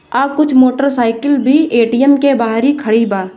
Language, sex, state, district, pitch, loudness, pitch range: Bhojpuri, female, Bihar, Gopalganj, 260 Hz, -12 LUFS, 230-280 Hz